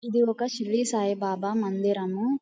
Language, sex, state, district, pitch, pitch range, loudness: Telugu, female, Andhra Pradesh, Guntur, 215 Hz, 200-235 Hz, -27 LUFS